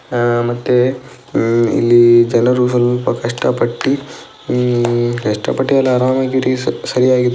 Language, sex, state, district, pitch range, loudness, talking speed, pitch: Kannada, male, Karnataka, Dakshina Kannada, 120-125 Hz, -14 LUFS, 105 wpm, 125 Hz